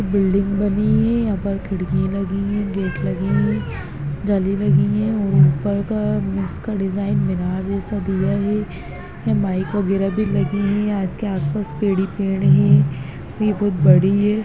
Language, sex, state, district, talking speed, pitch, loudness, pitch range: Hindi, female, Bihar, Begusarai, 165 wpm, 195 Hz, -19 LUFS, 180-205 Hz